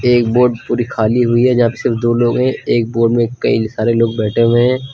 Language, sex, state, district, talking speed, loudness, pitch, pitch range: Hindi, male, Uttar Pradesh, Lucknow, 255 wpm, -14 LUFS, 120 Hz, 115-125 Hz